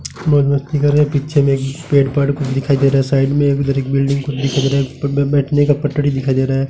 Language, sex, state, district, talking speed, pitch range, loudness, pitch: Hindi, male, Rajasthan, Bikaner, 285 wpm, 135-145 Hz, -16 LUFS, 140 Hz